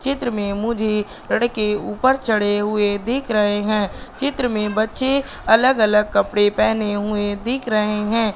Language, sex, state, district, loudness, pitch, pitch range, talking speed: Hindi, female, Madhya Pradesh, Katni, -19 LUFS, 215 Hz, 210-245 Hz, 150 wpm